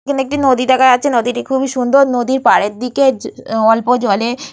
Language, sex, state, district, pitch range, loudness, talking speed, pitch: Bengali, female, West Bengal, Purulia, 245-270 Hz, -13 LUFS, 170 wpm, 255 Hz